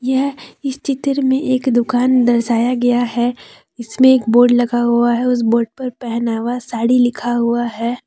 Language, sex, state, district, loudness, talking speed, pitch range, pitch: Hindi, female, Jharkhand, Deoghar, -16 LUFS, 170 wpm, 235-255 Hz, 245 Hz